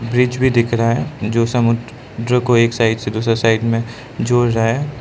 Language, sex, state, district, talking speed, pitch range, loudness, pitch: Hindi, male, Arunachal Pradesh, Lower Dibang Valley, 190 wpm, 115-125 Hz, -16 LUFS, 115 Hz